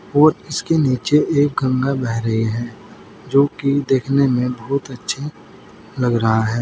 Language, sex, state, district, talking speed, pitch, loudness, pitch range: Hindi, male, Uttar Pradesh, Saharanpur, 155 wpm, 130 Hz, -18 LUFS, 120-145 Hz